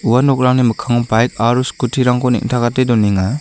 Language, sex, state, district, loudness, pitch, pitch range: Garo, male, Meghalaya, South Garo Hills, -14 LUFS, 125 Hz, 115-125 Hz